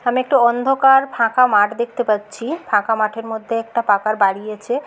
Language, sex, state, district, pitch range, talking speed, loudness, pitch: Bengali, female, West Bengal, Jhargram, 215-250 Hz, 170 wpm, -17 LUFS, 230 Hz